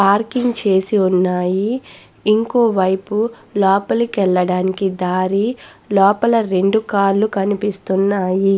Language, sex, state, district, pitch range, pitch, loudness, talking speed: Telugu, female, Andhra Pradesh, Guntur, 190-215 Hz, 200 Hz, -17 LUFS, 85 wpm